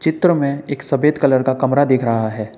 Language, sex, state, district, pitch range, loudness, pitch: Hindi, male, Uttar Pradesh, Saharanpur, 130-145 Hz, -16 LUFS, 140 Hz